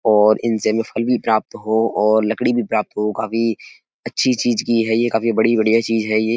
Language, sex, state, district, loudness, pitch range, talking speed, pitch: Hindi, male, Uttar Pradesh, Etah, -18 LUFS, 110-115 Hz, 225 wpm, 115 Hz